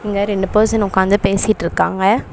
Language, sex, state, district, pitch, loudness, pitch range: Tamil, female, Tamil Nadu, Chennai, 200 Hz, -16 LUFS, 195-210 Hz